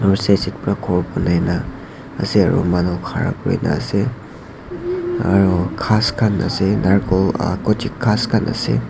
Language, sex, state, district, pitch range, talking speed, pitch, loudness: Nagamese, male, Nagaland, Dimapur, 90-110 Hz, 140 wpm, 100 Hz, -18 LUFS